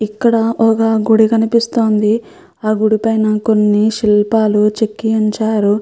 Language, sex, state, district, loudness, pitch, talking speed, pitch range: Telugu, female, Andhra Pradesh, Chittoor, -14 LUFS, 220 Hz, 115 wpm, 215-225 Hz